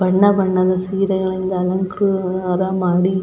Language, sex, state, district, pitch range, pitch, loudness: Kannada, female, Karnataka, Belgaum, 185-190 Hz, 185 Hz, -18 LUFS